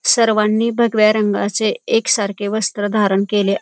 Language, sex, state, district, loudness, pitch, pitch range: Marathi, female, Maharashtra, Pune, -16 LUFS, 215 Hz, 205-220 Hz